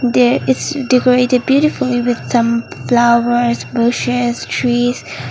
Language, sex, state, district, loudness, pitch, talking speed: English, female, Mizoram, Aizawl, -14 LUFS, 240 Hz, 100 wpm